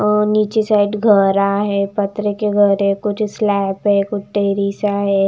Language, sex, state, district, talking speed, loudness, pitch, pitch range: Hindi, female, Himachal Pradesh, Shimla, 180 wpm, -16 LUFS, 205 Hz, 200-210 Hz